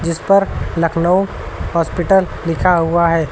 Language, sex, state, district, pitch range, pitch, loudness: Hindi, male, Uttar Pradesh, Lucknow, 165-185 Hz, 170 Hz, -16 LUFS